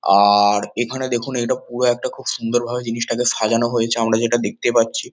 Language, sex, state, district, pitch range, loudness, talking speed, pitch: Bengali, male, West Bengal, North 24 Parganas, 115-120 Hz, -19 LUFS, 185 wpm, 120 Hz